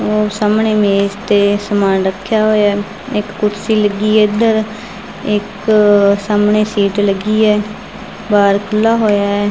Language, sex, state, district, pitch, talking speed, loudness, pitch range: Punjabi, female, Punjab, Fazilka, 210 Hz, 140 wpm, -13 LUFS, 205-215 Hz